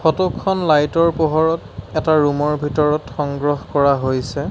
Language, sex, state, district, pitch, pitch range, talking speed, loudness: Assamese, male, Assam, Sonitpur, 150 Hz, 145-160 Hz, 160 wpm, -18 LUFS